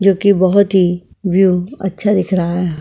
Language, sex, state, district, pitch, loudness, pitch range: Hindi, female, Uttar Pradesh, Budaun, 190 Hz, -14 LUFS, 180-195 Hz